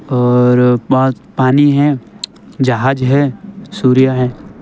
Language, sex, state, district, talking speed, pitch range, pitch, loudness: Hindi, male, Himachal Pradesh, Shimla, 105 wpm, 125-145 Hz, 130 Hz, -13 LUFS